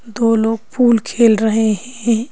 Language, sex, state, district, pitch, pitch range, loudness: Hindi, female, Madhya Pradesh, Bhopal, 230 Hz, 220-235 Hz, -15 LUFS